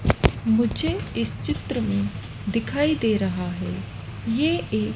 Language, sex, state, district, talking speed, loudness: Hindi, female, Madhya Pradesh, Dhar, 120 wpm, -24 LUFS